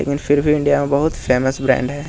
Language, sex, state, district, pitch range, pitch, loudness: Hindi, male, Bihar, Jahanabad, 130-145 Hz, 140 Hz, -17 LUFS